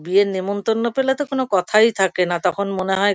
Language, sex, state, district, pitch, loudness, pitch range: Bengali, female, West Bengal, Kolkata, 200 Hz, -19 LUFS, 190-225 Hz